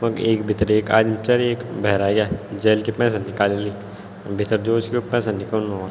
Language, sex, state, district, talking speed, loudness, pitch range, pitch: Garhwali, male, Uttarakhand, Tehri Garhwal, 225 wpm, -21 LUFS, 100-115 Hz, 105 Hz